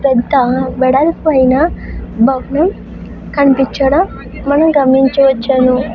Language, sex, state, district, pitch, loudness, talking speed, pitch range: Telugu, female, Karnataka, Bellary, 270 Hz, -12 LUFS, 60 wpm, 260-285 Hz